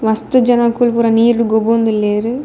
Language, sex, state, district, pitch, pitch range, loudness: Tulu, female, Karnataka, Dakshina Kannada, 230 Hz, 220-235 Hz, -13 LUFS